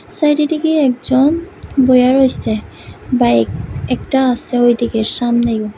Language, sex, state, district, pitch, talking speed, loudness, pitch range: Bengali, female, Tripura, West Tripura, 250 Hz, 105 wpm, -14 LUFS, 220-270 Hz